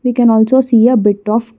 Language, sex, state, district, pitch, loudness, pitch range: English, female, Karnataka, Bangalore, 230 Hz, -11 LUFS, 220-245 Hz